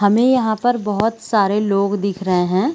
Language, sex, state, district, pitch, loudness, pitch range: Hindi, female, Bihar, Gaya, 205 Hz, -17 LUFS, 200-225 Hz